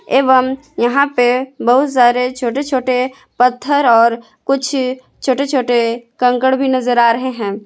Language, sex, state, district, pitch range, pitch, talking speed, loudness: Hindi, female, Jharkhand, Palamu, 240-265 Hz, 255 Hz, 140 wpm, -14 LUFS